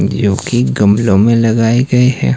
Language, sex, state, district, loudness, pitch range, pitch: Hindi, male, Himachal Pradesh, Shimla, -12 LUFS, 100-120 Hz, 115 Hz